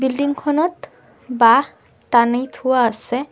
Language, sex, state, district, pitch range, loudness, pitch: Assamese, female, Assam, Sonitpur, 240-285 Hz, -17 LUFS, 255 Hz